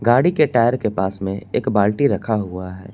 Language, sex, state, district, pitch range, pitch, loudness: Hindi, male, Jharkhand, Palamu, 95-120 Hz, 105 Hz, -19 LUFS